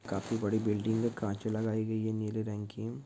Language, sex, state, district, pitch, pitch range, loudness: Hindi, male, Chhattisgarh, Balrampur, 110 Hz, 105-110 Hz, -34 LUFS